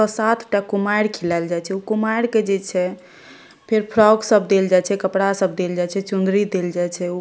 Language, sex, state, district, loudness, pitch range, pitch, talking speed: Maithili, female, Bihar, Madhepura, -19 LUFS, 185-215 Hz, 195 Hz, 210 wpm